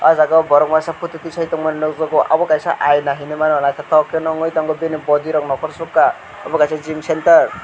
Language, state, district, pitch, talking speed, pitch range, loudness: Kokborok, Tripura, West Tripura, 155 Hz, 165 wpm, 150-160 Hz, -16 LUFS